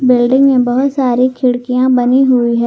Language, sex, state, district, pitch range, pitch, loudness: Hindi, female, Jharkhand, Garhwa, 245-260 Hz, 255 Hz, -12 LUFS